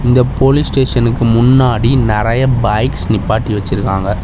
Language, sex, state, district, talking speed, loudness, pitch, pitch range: Tamil, male, Tamil Nadu, Chennai, 115 wpm, -12 LUFS, 115 Hz, 105-130 Hz